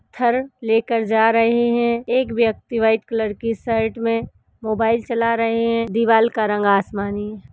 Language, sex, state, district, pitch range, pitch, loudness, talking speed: Hindi, female, Uttar Pradesh, Etah, 220-235 Hz, 230 Hz, -19 LUFS, 165 wpm